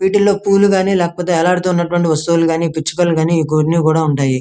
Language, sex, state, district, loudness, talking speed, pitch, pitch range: Telugu, male, Andhra Pradesh, Krishna, -14 LUFS, 165 wpm, 170 Hz, 160-180 Hz